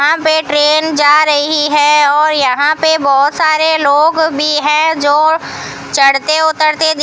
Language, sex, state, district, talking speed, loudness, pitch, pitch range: Hindi, female, Rajasthan, Bikaner, 160 wpm, -10 LUFS, 305 Hz, 290-315 Hz